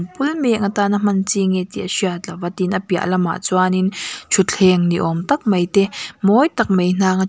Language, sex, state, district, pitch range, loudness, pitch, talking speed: Mizo, female, Mizoram, Aizawl, 180-200 Hz, -18 LUFS, 190 Hz, 205 wpm